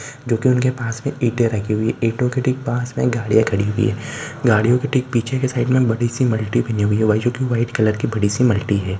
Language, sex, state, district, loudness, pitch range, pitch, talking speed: Marwari, male, Rajasthan, Nagaur, -19 LUFS, 110-125 Hz, 120 Hz, 265 wpm